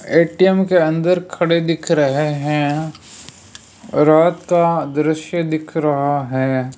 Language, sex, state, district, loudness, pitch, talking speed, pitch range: Hindi, male, Rajasthan, Jaipur, -17 LUFS, 155 Hz, 115 wpm, 140-170 Hz